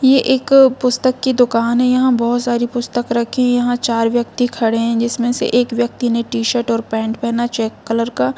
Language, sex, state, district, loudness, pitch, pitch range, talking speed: Hindi, female, Jharkhand, Jamtara, -16 LUFS, 240 Hz, 230-245 Hz, 210 wpm